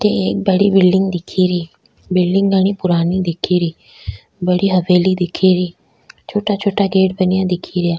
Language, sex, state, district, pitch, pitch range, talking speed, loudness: Rajasthani, female, Rajasthan, Nagaur, 185 Hz, 180-195 Hz, 130 wpm, -16 LUFS